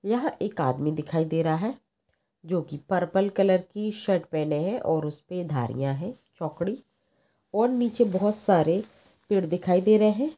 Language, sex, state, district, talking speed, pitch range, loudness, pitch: Hindi, female, Maharashtra, Pune, 175 wpm, 160-210 Hz, -26 LUFS, 185 Hz